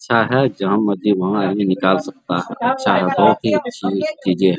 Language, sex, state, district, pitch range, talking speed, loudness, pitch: Hindi, male, Bihar, Araria, 95-130 Hz, 195 wpm, -17 LUFS, 100 Hz